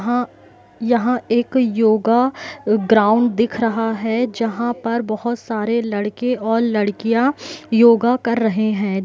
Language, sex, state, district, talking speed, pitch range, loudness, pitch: Hindi, female, Bihar, Gopalganj, 135 wpm, 220-240 Hz, -18 LUFS, 230 Hz